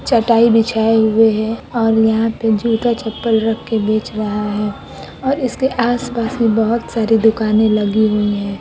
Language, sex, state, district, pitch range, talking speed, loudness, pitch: Hindi, female, Chhattisgarh, Kabirdham, 215-230 Hz, 165 wpm, -15 LUFS, 225 Hz